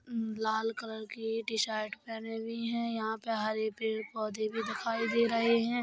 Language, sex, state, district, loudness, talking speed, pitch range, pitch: Hindi, female, Uttar Pradesh, Hamirpur, -33 LUFS, 185 wpm, 220-230 Hz, 225 Hz